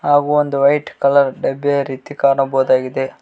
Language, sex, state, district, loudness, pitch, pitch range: Kannada, male, Karnataka, Koppal, -16 LUFS, 140 Hz, 135-145 Hz